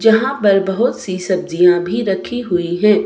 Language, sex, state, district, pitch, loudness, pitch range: Hindi, female, Himachal Pradesh, Shimla, 195 Hz, -16 LUFS, 180-225 Hz